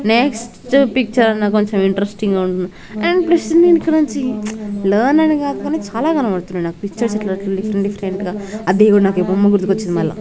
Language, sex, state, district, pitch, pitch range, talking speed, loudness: Telugu, female, Andhra Pradesh, Krishna, 210 Hz, 195-255 Hz, 160 wpm, -16 LUFS